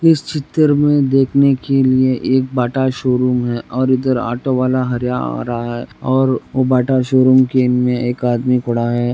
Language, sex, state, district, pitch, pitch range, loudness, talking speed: Hindi, male, Rajasthan, Nagaur, 130 Hz, 125-130 Hz, -15 LUFS, 185 wpm